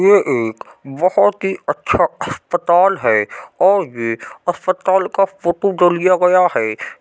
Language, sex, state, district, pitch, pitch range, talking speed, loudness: Hindi, male, Uttar Pradesh, Jyotiba Phule Nagar, 180 Hz, 145-195 Hz, 145 wpm, -16 LUFS